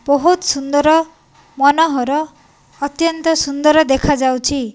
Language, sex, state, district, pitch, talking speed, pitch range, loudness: Odia, female, Odisha, Nuapada, 290 Hz, 75 wpm, 275-320 Hz, -15 LUFS